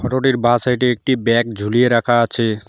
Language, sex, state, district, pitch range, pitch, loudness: Bengali, male, West Bengal, Alipurduar, 115-125 Hz, 120 Hz, -16 LUFS